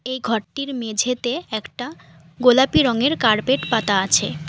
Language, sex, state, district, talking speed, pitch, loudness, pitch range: Bengali, female, West Bengal, Alipurduar, 120 wpm, 230 Hz, -19 LUFS, 210-255 Hz